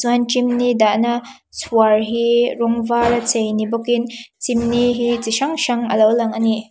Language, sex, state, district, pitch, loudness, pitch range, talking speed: Mizo, female, Mizoram, Aizawl, 235 Hz, -17 LUFS, 225-240 Hz, 180 wpm